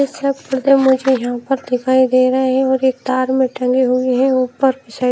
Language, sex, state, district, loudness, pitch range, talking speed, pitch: Hindi, female, Himachal Pradesh, Shimla, -15 LUFS, 255-265 Hz, 200 wpm, 260 Hz